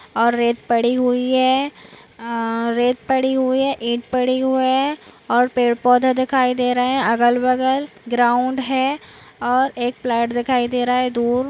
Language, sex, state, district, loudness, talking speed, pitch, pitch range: Hindi, female, Maharashtra, Sindhudurg, -18 LUFS, 160 wpm, 250 Hz, 240-260 Hz